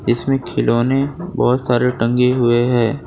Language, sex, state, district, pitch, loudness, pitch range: Hindi, male, Gujarat, Valsad, 125 Hz, -16 LUFS, 120-135 Hz